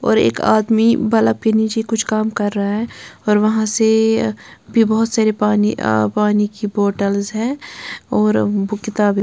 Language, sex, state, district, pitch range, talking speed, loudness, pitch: Hindi, female, Bihar, Patna, 205-220 Hz, 170 wpm, -17 LUFS, 215 Hz